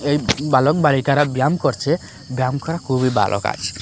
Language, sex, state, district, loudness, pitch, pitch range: Bengali, male, Assam, Hailakandi, -19 LUFS, 140 Hz, 130-150 Hz